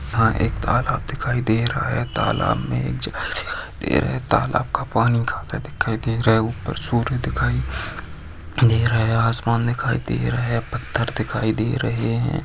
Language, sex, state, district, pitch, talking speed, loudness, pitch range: Hindi, male, Jharkhand, Jamtara, 115 Hz, 190 wpm, -21 LUFS, 100-120 Hz